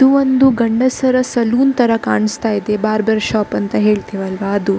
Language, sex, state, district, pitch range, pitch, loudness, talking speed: Kannada, female, Karnataka, Dakshina Kannada, 210-255 Hz, 220 Hz, -15 LUFS, 165 wpm